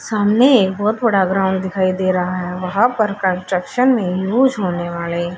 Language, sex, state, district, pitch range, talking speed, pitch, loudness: Hindi, female, Haryana, Charkhi Dadri, 180-215 Hz, 180 wpm, 190 Hz, -17 LUFS